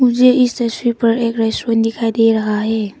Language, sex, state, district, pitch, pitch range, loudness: Hindi, female, Arunachal Pradesh, Papum Pare, 230 Hz, 225-240 Hz, -15 LUFS